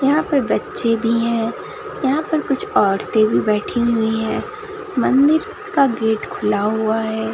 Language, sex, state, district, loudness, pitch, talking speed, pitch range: Hindi, female, Bihar, Katihar, -18 LUFS, 240 Hz, 155 wpm, 220-310 Hz